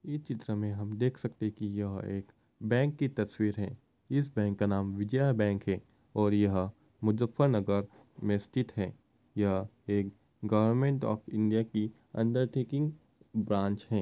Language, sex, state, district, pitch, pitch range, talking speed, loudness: Hindi, male, Uttar Pradesh, Muzaffarnagar, 110 Hz, 100-125 Hz, 155 wpm, -32 LUFS